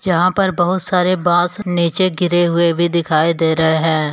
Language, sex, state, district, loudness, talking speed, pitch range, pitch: Hindi, male, Jharkhand, Deoghar, -15 LUFS, 190 wpm, 165-180 Hz, 175 Hz